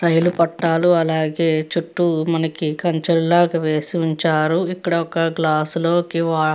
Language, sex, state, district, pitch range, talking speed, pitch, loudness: Telugu, female, Andhra Pradesh, Guntur, 160-170 Hz, 130 wpm, 165 Hz, -19 LUFS